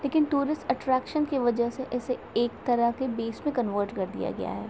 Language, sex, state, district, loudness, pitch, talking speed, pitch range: Hindi, female, Uttar Pradesh, Gorakhpur, -28 LUFS, 250 Hz, 190 wpm, 235-280 Hz